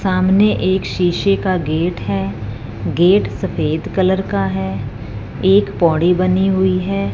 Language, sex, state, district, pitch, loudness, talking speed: Hindi, male, Punjab, Fazilka, 175 Hz, -16 LUFS, 135 wpm